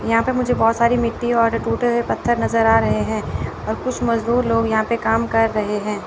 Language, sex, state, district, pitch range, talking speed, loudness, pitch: Hindi, female, Chandigarh, Chandigarh, 225-240 Hz, 235 wpm, -19 LUFS, 230 Hz